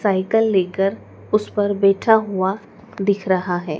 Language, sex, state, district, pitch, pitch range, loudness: Hindi, female, Madhya Pradesh, Dhar, 195 Hz, 190-210 Hz, -19 LUFS